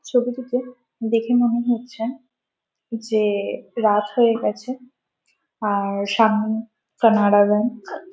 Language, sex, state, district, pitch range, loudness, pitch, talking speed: Bengali, female, West Bengal, Malda, 215-245 Hz, -21 LUFS, 230 Hz, 95 wpm